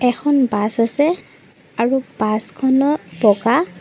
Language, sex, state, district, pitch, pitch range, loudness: Assamese, female, Assam, Sonitpur, 235 Hz, 215-265 Hz, -18 LUFS